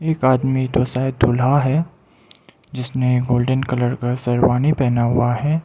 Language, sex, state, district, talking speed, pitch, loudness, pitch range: Hindi, male, Arunachal Pradesh, Lower Dibang Valley, 150 wpm, 130 Hz, -18 LUFS, 120-135 Hz